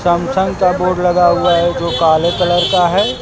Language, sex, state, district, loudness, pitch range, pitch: Hindi, male, Uttar Pradesh, Lucknow, -13 LUFS, 175-180 Hz, 175 Hz